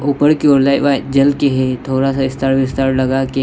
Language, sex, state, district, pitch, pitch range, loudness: Hindi, male, Arunachal Pradesh, Lower Dibang Valley, 135 Hz, 135-140 Hz, -14 LUFS